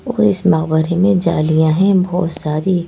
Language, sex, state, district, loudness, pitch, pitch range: Hindi, female, Madhya Pradesh, Bhopal, -15 LUFS, 170 Hz, 155-185 Hz